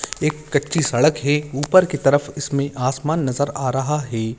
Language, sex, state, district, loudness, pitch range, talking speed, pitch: Hindi, male, Chhattisgarh, Kabirdham, -20 LUFS, 135-150 Hz, 180 wpm, 145 Hz